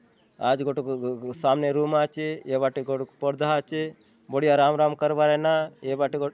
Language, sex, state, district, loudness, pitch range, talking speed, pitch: Halbi, male, Chhattisgarh, Bastar, -25 LUFS, 135-150 Hz, 180 wpm, 145 Hz